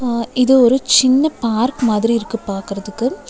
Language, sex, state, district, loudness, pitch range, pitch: Tamil, female, Tamil Nadu, Nilgiris, -15 LUFS, 220-255 Hz, 235 Hz